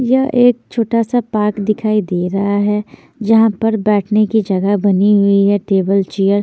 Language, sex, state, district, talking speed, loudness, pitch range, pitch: Hindi, female, Chandigarh, Chandigarh, 185 wpm, -14 LUFS, 200-225 Hz, 210 Hz